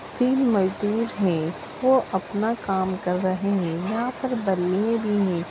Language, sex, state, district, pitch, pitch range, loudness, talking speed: Hindi, female, Bihar, East Champaran, 200 Hz, 185-230 Hz, -24 LUFS, 155 wpm